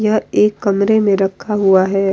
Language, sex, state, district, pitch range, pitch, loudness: Hindi, female, Bihar, Kishanganj, 195-210 Hz, 200 Hz, -14 LUFS